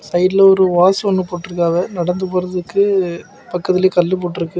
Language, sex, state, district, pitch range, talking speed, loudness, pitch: Tamil, male, Tamil Nadu, Kanyakumari, 175-190 Hz, 145 wpm, -15 LUFS, 180 Hz